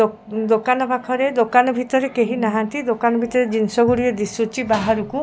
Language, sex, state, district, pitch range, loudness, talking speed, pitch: Odia, female, Odisha, Khordha, 220-250 Hz, -19 LUFS, 140 wpm, 235 Hz